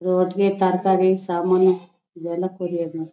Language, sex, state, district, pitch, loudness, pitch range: Kannada, female, Karnataka, Shimoga, 185 Hz, -21 LUFS, 175-185 Hz